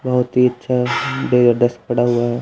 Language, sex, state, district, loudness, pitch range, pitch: Hindi, male, Haryana, Jhajjar, -17 LUFS, 120-125 Hz, 125 Hz